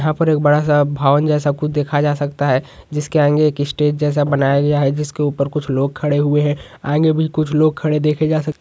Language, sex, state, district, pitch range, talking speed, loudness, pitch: Hindi, male, Bihar, Jahanabad, 145-150 Hz, 235 wpm, -17 LUFS, 150 Hz